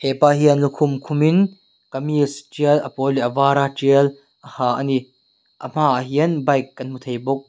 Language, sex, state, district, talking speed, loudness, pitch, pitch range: Mizo, male, Mizoram, Aizawl, 210 wpm, -19 LUFS, 140 Hz, 135-150 Hz